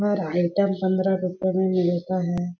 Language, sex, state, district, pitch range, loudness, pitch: Hindi, female, Chhattisgarh, Balrampur, 175-190 Hz, -23 LUFS, 185 Hz